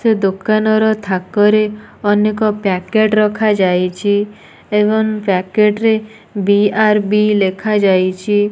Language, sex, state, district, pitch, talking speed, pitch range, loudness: Odia, female, Odisha, Nuapada, 210 Hz, 85 wpm, 200-215 Hz, -14 LUFS